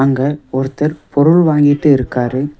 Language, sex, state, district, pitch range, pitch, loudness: Tamil, male, Tamil Nadu, Nilgiris, 135-150 Hz, 145 Hz, -14 LUFS